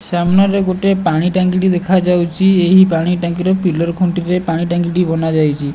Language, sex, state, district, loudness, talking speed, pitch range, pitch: Odia, male, Odisha, Nuapada, -14 LUFS, 145 wpm, 170-185 Hz, 175 Hz